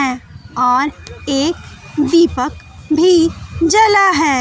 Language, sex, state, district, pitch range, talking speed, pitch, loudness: Hindi, female, Bihar, West Champaran, 270-340 Hz, 95 wpm, 315 Hz, -14 LUFS